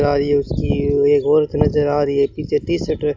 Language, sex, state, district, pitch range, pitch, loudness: Hindi, male, Rajasthan, Bikaner, 145-170 Hz, 150 Hz, -17 LUFS